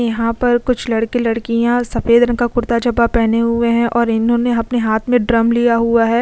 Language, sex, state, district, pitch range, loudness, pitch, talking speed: Hindi, female, Chhattisgarh, Kabirdham, 230-240 Hz, -15 LUFS, 235 Hz, 210 wpm